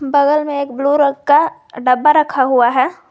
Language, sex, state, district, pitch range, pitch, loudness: Hindi, female, Jharkhand, Garhwa, 260-295 Hz, 280 Hz, -14 LUFS